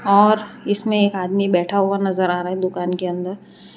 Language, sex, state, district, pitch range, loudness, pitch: Hindi, female, Gujarat, Valsad, 180-205 Hz, -19 LUFS, 195 Hz